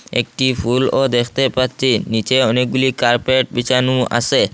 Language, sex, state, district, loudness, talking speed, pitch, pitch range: Bengali, male, Assam, Hailakandi, -16 LUFS, 120 wpm, 130 Hz, 120-130 Hz